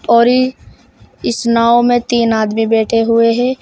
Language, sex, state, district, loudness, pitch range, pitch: Hindi, male, Uttar Pradesh, Shamli, -13 LUFS, 230-240 Hz, 235 Hz